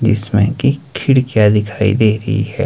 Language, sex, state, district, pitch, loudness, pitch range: Hindi, male, Himachal Pradesh, Shimla, 110 Hz, -14 LUFS, 105-130 Hz